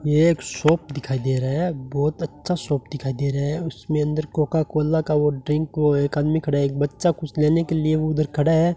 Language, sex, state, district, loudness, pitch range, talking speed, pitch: Hindi, male, Rajasthan, Bikaner, -22 LUFS, 145-160 Hz, 225 wpm, 150 Hz